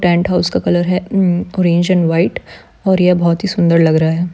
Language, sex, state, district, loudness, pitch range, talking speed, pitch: Hindi, female, Bihar, Supaul, -14 LUFS, 170-185 Hz, 220 wpm, 175 Hz